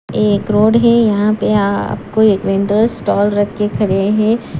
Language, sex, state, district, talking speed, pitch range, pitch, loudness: Hindi, female, Punjab, Pathankot, 170 wpm, 205-215 Hz, 210 Hz, -14 LUFS